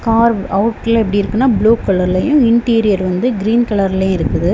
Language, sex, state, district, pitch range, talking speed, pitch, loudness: Tamil, female, Tamil Nadu, Kanyakumari, 195-230 Hz, 130 wpm, 220 Hz, -14 LUFS